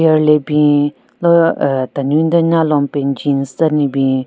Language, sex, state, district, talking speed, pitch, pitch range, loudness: Rengma, female, Nagaland, Kohima, 180 wpm, 150 Hz, 140-160 Hz, -14 LUFS